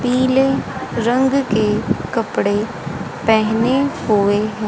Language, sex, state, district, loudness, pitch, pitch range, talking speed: Hindi, female, Haryana, Rohtak, -17 LUFS, 225 Hz, 215-260 Hz, 90 wpm